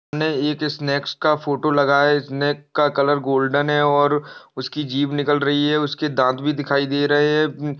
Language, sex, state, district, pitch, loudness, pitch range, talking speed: Hindi, male, Chhattisgarh, Balrampur, 145 Hz, -19 LUFS, 140-150 Hz, 190 wpm